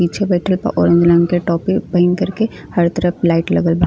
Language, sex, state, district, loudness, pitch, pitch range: Bhojpuri, female, Uttar Pradesh, Ghazipur, -15 LUFS, 175 Hz, 170-185 Hz